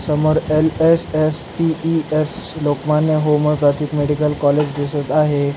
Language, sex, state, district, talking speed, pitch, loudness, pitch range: Marathi, male, Maharashtra, Pune, 85 wpm, 150 Hz, -17 LUFS, 145-155 Hz